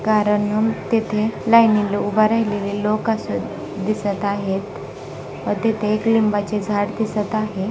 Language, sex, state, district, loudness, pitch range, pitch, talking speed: Marathi, female, Maharashtra, Sindhudurg, -20 LUFS, 205-215 Hz, 210 Hz, 115 wpm